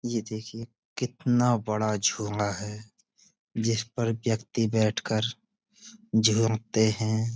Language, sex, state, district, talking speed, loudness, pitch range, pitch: Hindi, male, Uttar Pradesh, Budaun, 90 wpm, -27 LUFS, 110-120 Hz, 115 Hz